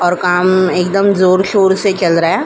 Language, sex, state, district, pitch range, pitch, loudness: Hindi, female, Uttar Pradesh, Jalaun, 180-195 Hz, 185 Hz, -12 LUFS